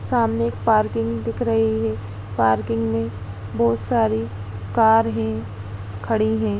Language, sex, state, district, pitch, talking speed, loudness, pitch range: Hindi, female, Bihar, Sitamarhi, 110 Hz, 120 wpm, -21 LUFS, 100-115 Hz